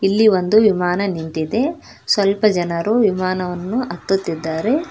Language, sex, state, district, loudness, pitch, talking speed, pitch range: Kannada, female, Karnataka, Bangalore, -18 LUFS, 195 Hz, 100 wpm, 180-220 Hz